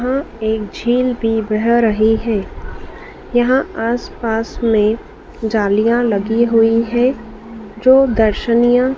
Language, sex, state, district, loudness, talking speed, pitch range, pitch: Hindi, female, Madhya Pradesh, Dhar, -15 LUFS, 105 wpm, 220-240 Hz, 225 Hz